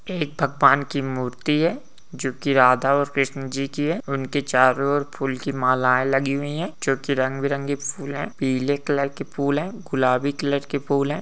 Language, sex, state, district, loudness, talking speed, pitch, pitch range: Hindi, male, Uttar Pradesh, Ghazipur, -22 LUFS, 210 wpm, 140 Hz, 135-145 Hz